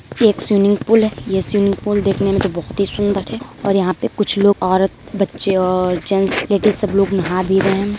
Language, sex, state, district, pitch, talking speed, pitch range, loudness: Hindi, female, Uttar Pradesh, Deoria, 195 Hz, 235 wpm, 190-205 Hz, -16 LUFS